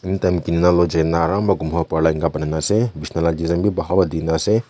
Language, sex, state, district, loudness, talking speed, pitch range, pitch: Nagamese, male, Nagaland, Kohima, -19 LUFS, 155 wpm, 80-95 Hz, 85 Hz